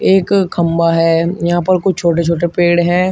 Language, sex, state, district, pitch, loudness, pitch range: Hindi, male, Uttar Pradesh, Shamli, 175 Hz, -13 LUFS, 170-185 Hz